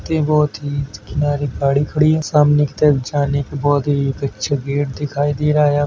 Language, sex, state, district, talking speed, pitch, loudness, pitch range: Hindi, male, Uttar Pradesh, Hamirpur, 205 wpm, 145 Hz, -17 LUFS, 140-150 Hz